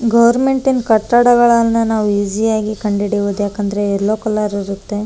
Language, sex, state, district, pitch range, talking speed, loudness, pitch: Kannada, female, Karnataka, Raichur, 205-235 Hz, 120 wpm, -15 LUFS, 215 Hz